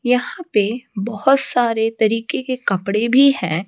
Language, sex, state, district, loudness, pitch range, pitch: Hindi, female, Odisha, Malkangiri, -18 LUFS, 210-255 Hz, 230 Hz